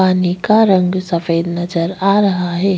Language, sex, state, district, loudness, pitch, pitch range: Hindi, female, Chhattisgarh, Bastar, -15 LUFS, 185 Hz, 175-195 Hz